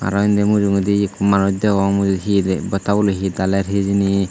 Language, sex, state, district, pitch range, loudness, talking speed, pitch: Chakma, male, Tripura, Dhalai, 95-100 Hz, -17 LUFS, 195 wpm, 100 Hz